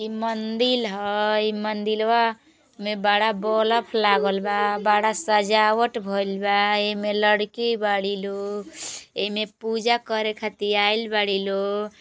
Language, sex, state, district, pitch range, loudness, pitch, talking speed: Bhojpuri, female, Uttar Pradesh, Gorakhpur, 205-220 Hz, -22 LUFS, 210 Hz, 125 wpm